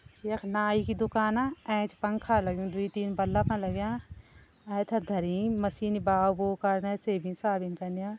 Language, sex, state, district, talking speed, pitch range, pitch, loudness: Garhwali, female, Uttarakhand, Tehri Garhwal, 145 wpm, 195-215 Hz, 205 Hz, -30 LUFS